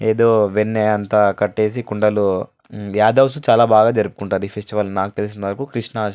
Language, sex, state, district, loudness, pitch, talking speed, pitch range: Telugu, male, Andhra Pradesh, Anantapur, -17 LUFS, 105 Hz, 165 wpm, 100-110 Hz